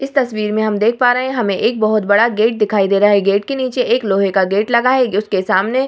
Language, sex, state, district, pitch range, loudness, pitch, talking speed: Hindi, female, Bihar, Vaishali, 205-245 Hz, -15 LUFS, 215 Hz, 315 wpm